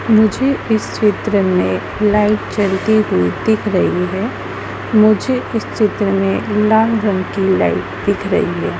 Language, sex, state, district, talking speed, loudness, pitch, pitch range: Hindi, female, Madhya Pradesh, Dhar, 145 wpm, -16 LUFS, 210 Hz, 195-220 Hz